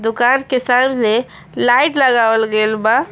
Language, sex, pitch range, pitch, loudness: Bhojpuri, female, 215-255 Hz, 230 Hz, -14 LUFS